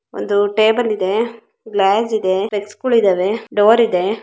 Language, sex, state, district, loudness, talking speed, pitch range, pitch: Kannada, female, Karnataka, Belgaum, -16 LUFS, 125 wpm, 200-225 Hz, 210 Hz